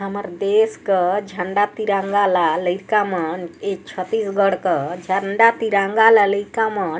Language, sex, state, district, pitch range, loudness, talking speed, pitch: Chhattisgarhi, female, Chhattisgarh, Sarguja, 185-210 Hz, -19 LUFS, 130 wpm, 200 Hz